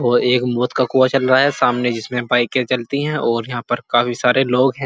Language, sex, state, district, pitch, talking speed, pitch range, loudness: Hindi, male, Uttar Pradesh, Muzaffarnagar, 125 Hz, 245 wpm, 120-130 Hz, -17 LUFS